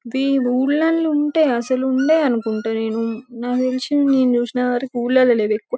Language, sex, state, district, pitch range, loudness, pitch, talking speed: Telugu, female, Telangana, Karimnagar, 240-275 Hz, -18 LUFS, 255 Hz, 155 wpm